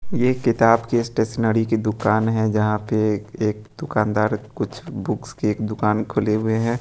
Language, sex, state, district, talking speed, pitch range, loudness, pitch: Hindi, male, Bihar, West Champaran, 175 wpm, 105-115 Hz, -21 LUFS, 110 Hz